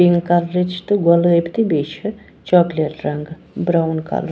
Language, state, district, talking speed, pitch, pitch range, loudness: Kashmiri, Punjab, Kapurthala, 140 wpm, 170 Hz, 160-180 Hz, -18 LUFS